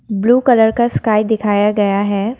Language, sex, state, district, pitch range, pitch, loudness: Hindi, female, Assam, Kamrup Metropolitan, 205-230 Hz, 215 Hz, -14 LUFS